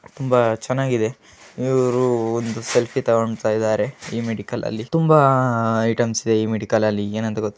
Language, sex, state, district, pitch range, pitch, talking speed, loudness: Kannada, male, Karnataka, Gulbarga, 110-125 Hz, 115 Hz, 150 wpm, -20 LUFS